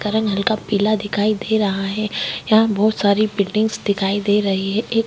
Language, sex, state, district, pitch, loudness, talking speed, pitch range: Hindi, female, Chhattisgarh, Korba, 210 Hz, -19 LUFS, 190 wpm, 200-215 Hz